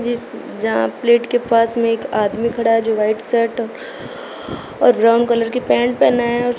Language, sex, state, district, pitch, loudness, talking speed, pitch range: Hindi, female, Uttar Pradesh, Shamli, 235 Hz, -16 LUFS, 180 wpm, 225-240 Hz